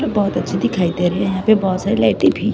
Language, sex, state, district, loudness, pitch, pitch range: Hindi, female, Chhattisgarh, Raipur, -17 LUFS, 195 Hz, 185-205 Hz